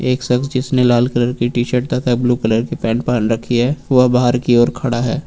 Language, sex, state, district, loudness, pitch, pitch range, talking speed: Hindi, male, Uttar Pradesh, Lucknow, -16 LUFS, 125 Hz, 120-125 Hz, 240 wpm